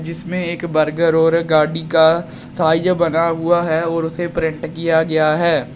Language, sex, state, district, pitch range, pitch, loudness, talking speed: Hindi, male, Uttar Pradesh, Shamli, 160-170 Hz, 165 Hz, -17 LUFS, 165 wpm